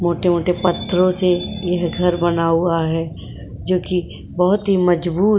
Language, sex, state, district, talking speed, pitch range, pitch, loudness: Hindi, female, Uttar Pradesh, Jyotiba Phule Nagar, 155 wpm, 170-185 Hz, 180 Hz, -18 LUFS